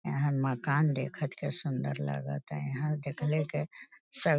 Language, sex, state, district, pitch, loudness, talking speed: Bhojpuri, female, Uttar Pradesh, Deoria, 140 Hz, -32 LUFS, 150 wpm